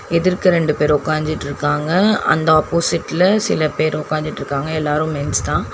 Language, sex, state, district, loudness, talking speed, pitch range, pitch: Tamil, female, Tamil Nadu, Chennai, -17 LUFS, 125 wpm, 145-170 Hz, 155 Hz